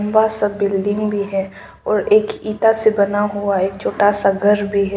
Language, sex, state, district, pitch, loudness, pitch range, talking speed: Hindi, female, Arunachal Pradesh, Papum Pare, 205 Hz, -17 LUFS, 200-215 Hz, 205 wpm